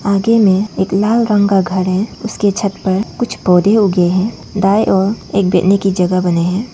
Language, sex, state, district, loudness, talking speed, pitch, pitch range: Hindi, female, Arunachal Pradesh, Papum Pare, -14 LUFS, 205 wpm, 195 Hz, 185-205 Hz